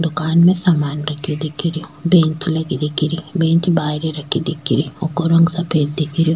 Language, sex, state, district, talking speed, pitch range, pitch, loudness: Rajasthani, female, Rajasthan, Churu, 190 wpm, 150-170 Hz, 160 Hz, -17 LUFS